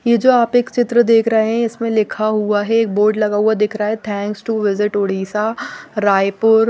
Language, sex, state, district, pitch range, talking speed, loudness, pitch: Hindi, female, Odisha, Nuapada, 210-230 Hz, 215 wpm, -16 LUFS, 220 Hz